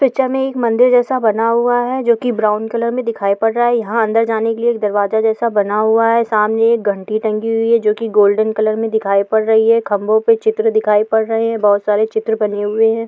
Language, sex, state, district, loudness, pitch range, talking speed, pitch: Hindi, female, Bihar, Saharsa, -15 LUFS, 215-230 Hz, 255 wpm, 225 Hz